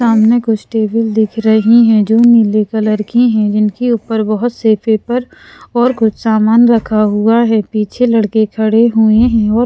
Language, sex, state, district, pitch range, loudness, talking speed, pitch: Hindi, female, Punjab, Pathankot, 215-235 Hz, -11 LUFS, 175 wpm, 220 Hz